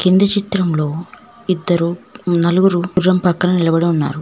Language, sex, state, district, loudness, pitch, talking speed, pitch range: Telugu, female, Telangana, Mahabubabad, -16 LUFS, 180 Hz, 115 wpm, 170-190 Hz